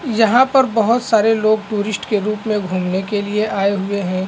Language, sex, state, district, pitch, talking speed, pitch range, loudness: Hindi, male, Chhattisgarh, Bastar, 215 Hz, 225 wpm, 200-225 Hz, -17 LUFS